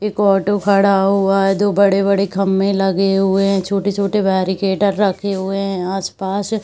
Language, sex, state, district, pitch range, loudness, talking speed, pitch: Hindi, female, Bihar, Saharsa, 195-200 Hz, -16 LUFS, 180 wpm, 195 Hz